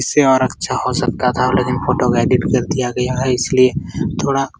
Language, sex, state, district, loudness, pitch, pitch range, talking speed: Hindi, male, Bihar, Araria, -16 LUFS, 130 Hz, 125-135 Hz, 220 wpm